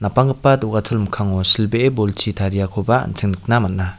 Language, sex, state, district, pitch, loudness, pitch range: Garo, male, Meghalaya, West Garo Hills, 105 Hz, -17 LUFS, 100-120 Hz